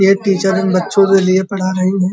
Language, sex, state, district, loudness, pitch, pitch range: Hindi, male, Uttar Pradesh, Muzaffarnagar, -14 LUFS, 190 Hz, 185-195 Hz